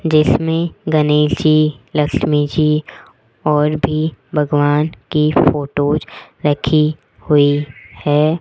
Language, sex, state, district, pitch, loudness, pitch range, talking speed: Hindi, female, Rajasthan, Jaipur, 150 Hz, -16 LUFS, 145-155 Hz, 95 wpm